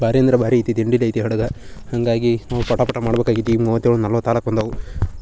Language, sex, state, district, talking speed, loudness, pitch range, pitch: Kannada, male, Karnataka, Bijapur, 185 wpm, -19 LUFS, 115-120 Hz, 115 Hz